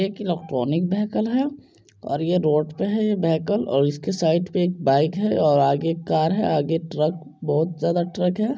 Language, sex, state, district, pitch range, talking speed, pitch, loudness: Maithili, male, Bihar, Supaul, 150-195 Hz, 180 wpm, 165 Hz, -22 LUFS